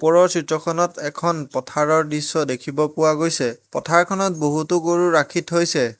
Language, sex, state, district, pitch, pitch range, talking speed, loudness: Assamese, male, Assam, Hailakandi, 160 Hz, 150-170 Hz, 130 wpm, -20 LUFS